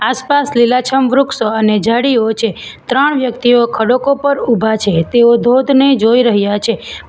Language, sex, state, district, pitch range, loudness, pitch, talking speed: Gujarati, female, Gujarat, Valsad, 220-265 Hz, -12 LUFS, 240 Hz, 150 wpm